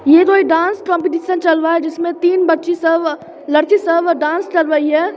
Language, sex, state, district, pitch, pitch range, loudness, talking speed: Hindi, male, Bihar, Muzaffarpur, 335 Hz, 320-355 Hz, -14 LUFS, 210 wpm